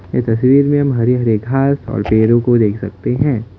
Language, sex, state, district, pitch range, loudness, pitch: Hindi, male, Assam, Kamrup Metropolitan, 110-135 Hz, -14 LUFS, 120 Hz